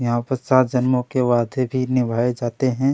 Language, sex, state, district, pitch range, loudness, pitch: Hindi, male, Chhattisgarh, Kabirdham, 120-130 Hz, -20 LUFS, 125 Hz